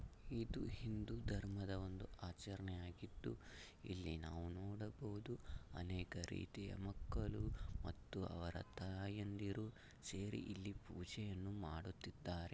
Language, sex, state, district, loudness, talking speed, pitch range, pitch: Kannada, male, Karnataka, Raichur, -50 LUFS, 85 wpm, 90-105 Hz, 100 Hz